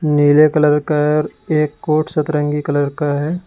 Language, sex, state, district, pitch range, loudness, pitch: Hindi, male, Uttar Pradesh, Lalitpur, 150-155 Hz, -16 LUFS, 150 Hz